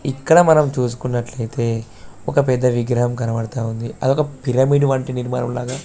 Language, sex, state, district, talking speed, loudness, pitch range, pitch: Telugu, male, Telangana, Karimnagar, 145 wpm, -18 LUFS, 120-135 Hz, 125 Hz